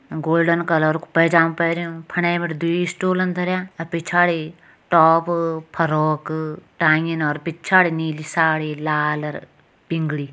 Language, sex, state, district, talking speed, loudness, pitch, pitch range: Kumaoni, female, Uttarakhand, Tehri Garhwal, 120 wpm, -20 LUFS, 165 Hz, 155-170 Hz